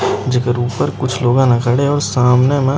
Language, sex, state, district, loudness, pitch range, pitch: Chhattisgarhi, male, Chhattisgarh, Rajnandgaon, -15 LUFS, 120-135 Hz, 130 Hz